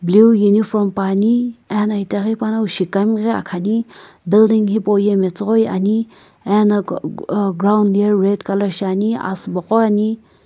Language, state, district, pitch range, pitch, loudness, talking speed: Sumi, Nagaland, Kohima, 195-220 Hz, 210 Hz, -16 LUFS, 150 wpm